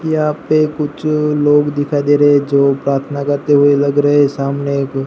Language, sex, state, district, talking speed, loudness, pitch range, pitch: Hindi, male, Gujarat, Gandhinagar, 190 wpm, -14 LUFS, 140-150 Hz, 145 Hz